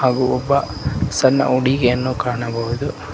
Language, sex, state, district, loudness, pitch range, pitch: Kannada, male, Karnataka, Koppal, -18 LUFS, 120-130 Hz, 125 Hz